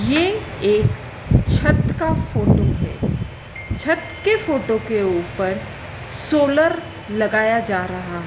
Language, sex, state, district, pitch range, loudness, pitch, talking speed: Hindi, female, Madhya Pradesh, Dhar, 190-315 Hz, -19 LUFS, 220 Hz, 110 wpm